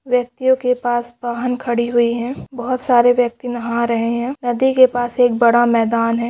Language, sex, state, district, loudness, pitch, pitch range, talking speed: Hindi, female, Bihar, Bhagalpur, -17 LUFS, 240 Hz, 235-250 Hz, 190 wpm